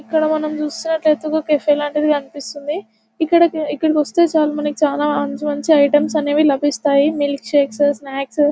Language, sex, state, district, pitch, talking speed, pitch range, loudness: Telugu, female, Telangana, Nalgonda, 295 Hz, 140 wpm, 285-310 Hz, -17 LUFS